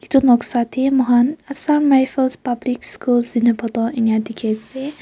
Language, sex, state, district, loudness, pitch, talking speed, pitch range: Nagamese, female, Nagaland, Kohima, -16 LUFS, 245 Hz, 145 wpm, 235-270 Hz